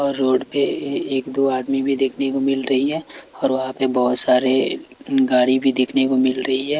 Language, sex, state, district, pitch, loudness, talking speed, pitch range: Hindi, male, Chhattisgarh, Raipur, 135 Hz, -19 LUFS, 210 wpm, 130-135 Hz